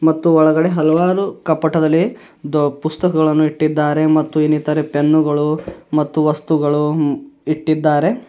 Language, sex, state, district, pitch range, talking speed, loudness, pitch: Kannada, male, Karnataka, Bidar, 150-160 Hz, 95 wpm, -16 LUFS, 155 Hz